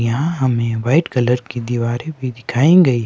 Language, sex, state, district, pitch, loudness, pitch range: Hindi, male, Himachal Pradesh, Shimla, 125 Hz, -17 LUFS, 120-135 Hz